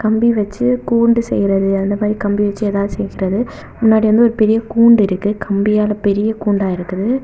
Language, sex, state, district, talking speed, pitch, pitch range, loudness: Tamil, female, Tamil Nadu, Kanyakumari, 165 wpm, 210 Hz, 200-225 Hz, -15 LUFS